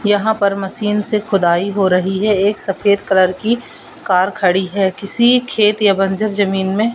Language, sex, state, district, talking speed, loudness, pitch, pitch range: Hindi, female, Madhya Pradesh, Katni, 180 wpm, -15 LUFS, 200 Hz, 190-210 Hz